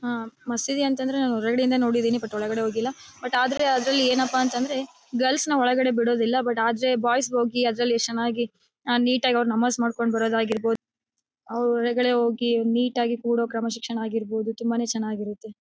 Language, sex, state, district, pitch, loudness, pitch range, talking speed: Kannada, female, Karnataka, Bellary, 240 Hz, -24 LUFS, 230-255 Hz, 155 wpm